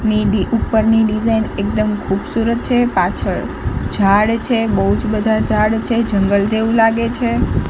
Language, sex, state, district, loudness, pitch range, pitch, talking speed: Gujarati, female, Gujarat, Gandhinagar, -16 LUFS, 210-230 Hz, 220 Hz, 125 wpm